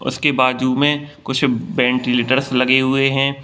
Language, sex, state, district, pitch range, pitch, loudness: Hindi, male, Bihar, Gopalganj, 130-140 Hz, 130 Hz, -17 LUFS